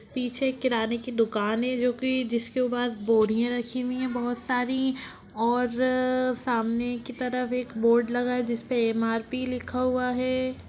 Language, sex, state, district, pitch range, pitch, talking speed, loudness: Hindi, female, Bihar, Lakhisarai, 235-255 Hz, 245 Hz, 165 wpm, -26 LUFS